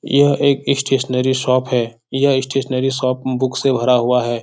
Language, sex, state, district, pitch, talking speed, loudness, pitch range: Hindi, male, Bihar, Jahanabad, 130 Hz, 175 wpm, -17 LUFS, 125-135 Hz